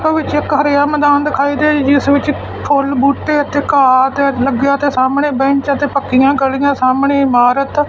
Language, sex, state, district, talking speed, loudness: Punjabi, male, Punjab, Fazilka, 190 wpm, -13 LUFS